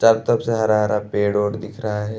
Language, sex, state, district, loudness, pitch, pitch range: Hindi, male, Chhattisgarh, Bastar, -20 LUFS, 110 Hz, 105-110 Hz